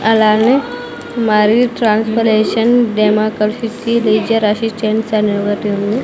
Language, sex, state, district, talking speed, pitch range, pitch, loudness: Telugu, female, Andhra Pradesh, Sri Satya Sai, 80 wpm, 215-230 Hz, 220 Hz, -14 LUFS